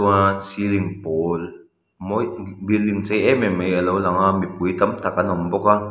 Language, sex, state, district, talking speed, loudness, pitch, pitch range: Mizo, male, Mizoram, Aizawl, 205 wpm, -21 LUFS, 95 Hz, 90-100 Hz